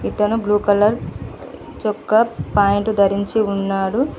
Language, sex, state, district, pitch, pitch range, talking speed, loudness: Telugu, female, Telangana, Mahabubabad, 210 Hz, 200-215 Hz, 100 wpm, -18 LUFS